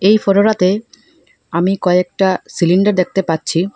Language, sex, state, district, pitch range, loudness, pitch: Bengali, female, Assam, Hailakandi, 180-200 Hz, -15 LUFS, 190 Hz